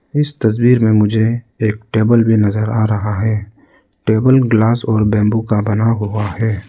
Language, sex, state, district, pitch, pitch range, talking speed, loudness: Hindi, male, Arunachal Pradesh, Lower Dibang Valley, 110 Hz, 105-115 Hz, 170 wpm, -15 LUFS